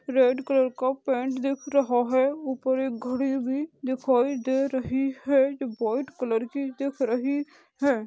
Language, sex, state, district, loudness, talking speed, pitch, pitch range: Hindi, female, Goa, North and South Goa, -26 LUFS, 165 wpm, 265 Hz, 255-275 Hz